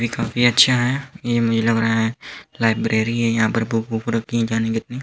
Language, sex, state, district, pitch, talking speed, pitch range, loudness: Hindi, male, Uttar Pradesh, Hamirpur, 115 Hz, 225 wpm, 115-120 Hz, -19 LUFS